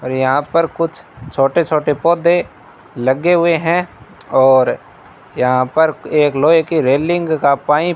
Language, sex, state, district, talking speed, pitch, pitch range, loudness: Hindi, male, Rajasthan, Bikaner, 150 wpm, 150 Hz, 135-170 Hz, -15 LUFS